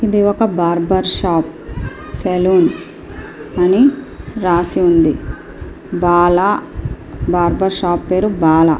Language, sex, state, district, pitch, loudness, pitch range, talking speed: Telugu, female, Andhra Pradesh, Srikakulam, 180 Hz, -15 LUFS, 175-195 Hz, 95 wpm